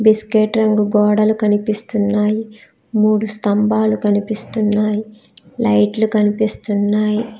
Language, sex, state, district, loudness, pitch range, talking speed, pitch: Telugu, female, Telangana, Hyderabad, -16 LUFS, 210-220 Hz, 75 wpm, 215 Hz